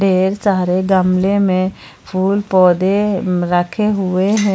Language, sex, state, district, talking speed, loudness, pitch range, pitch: Hindi, female, Jharkhand, Palamu, 120 wpm, -15 LUFS, 185-200 Hz, 190 Hz